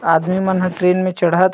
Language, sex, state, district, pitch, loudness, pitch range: Chhattisgarhi, male, Chhattisgarh, Rajnandgaon, 185 Hz, -16 LUFS, 175-185 Hz